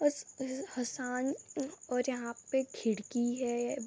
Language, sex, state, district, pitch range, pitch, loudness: Hindi, female, Jharkhand, Sahebganj, 240-265 Hz, 250 Hz, -36 LUFS